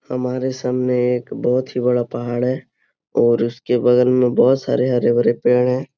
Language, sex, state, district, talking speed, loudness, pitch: Hindi, male, Bihar, Supaul, 170 wpm, -18 LUFS, 125 Hz